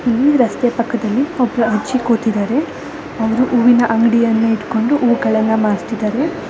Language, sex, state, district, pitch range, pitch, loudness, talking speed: Kannada, female, Karnataka, Dharwad, 225-250 Hz, 235 Hz, -15 LUFS, 85 wpm